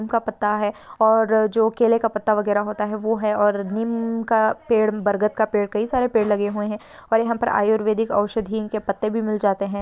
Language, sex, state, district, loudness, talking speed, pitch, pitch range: Hindi, female, Maharashtra, Sindhudurg, -21 LUFS, 225 wpm, 215 Hz, 210-225 Hz